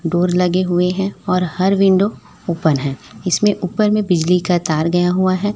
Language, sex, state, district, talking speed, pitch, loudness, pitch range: Hindi, female, Chhattisgarh, Raipur, 195 wpm, 180 Hz, -17 LUFS, 175-195 Hz